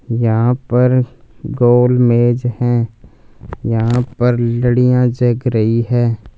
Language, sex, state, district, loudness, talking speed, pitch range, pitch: Hindi, male, Punjab, Fazilka, -14 LUFS, 95 wpm, 115-125 Hz, 120 Hz